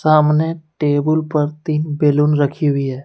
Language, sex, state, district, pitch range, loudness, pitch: Hindi, male, Jharkhand, Deoghar, 145-155 Hz, -17 LUFS, 150 Hz